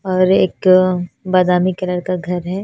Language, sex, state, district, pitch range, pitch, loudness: Hindi, female, Punjab, Fazilka, 180-185 Hz, 185 Hz, -16 LUFS